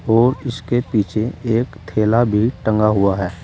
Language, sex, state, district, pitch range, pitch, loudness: Hindi, male, Uttar Pradesh, Saharanpur, 105-120 Hz, 110 Hz, -18 LUFS